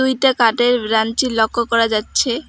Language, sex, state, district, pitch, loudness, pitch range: Bengali, female, West Bengal, Alipurduar, 235 Hz, -16 LUFS, 225-255 Hz